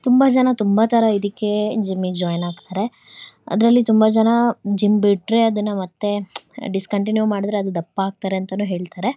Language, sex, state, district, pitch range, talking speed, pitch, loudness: Kannada, female, Karnataka, Shimoga, 195-225 Hz, 145 wpm, 205 Hz, -19 LUFS